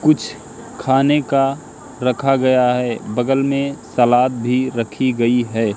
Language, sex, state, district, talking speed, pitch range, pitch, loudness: Hindi, male, Madhya Pradesh, Katni, 135 wpm, 120-135 Hz, 125 Hz, -17 LUFS